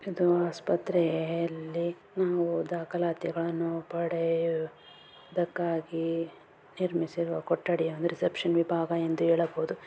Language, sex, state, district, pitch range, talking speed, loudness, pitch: Kannada, female, Karnataka, Bijapur, 165-170 Hz, 75 wpm, -30 LUFS, 170 Hz